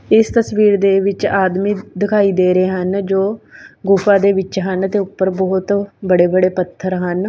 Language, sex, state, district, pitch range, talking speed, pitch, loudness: Punjabi, female, Punjab, Kapurthala, 185-200 Hz, 175 wpm, 195 Hz, -15 LUFS